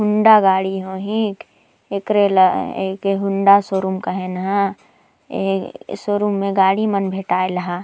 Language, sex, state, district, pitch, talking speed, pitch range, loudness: Sadri, female, Chhattisgarh, Jashpur, 195 Hz, 130 wpm, 190-200 Hz, -18 LUFS